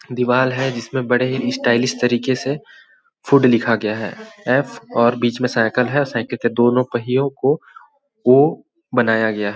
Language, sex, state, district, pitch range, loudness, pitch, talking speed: Hindi, male, Chhattisgarh, Balrampur, 120-130 Hz, -18 LUFS, 125 Hz, 175 wpm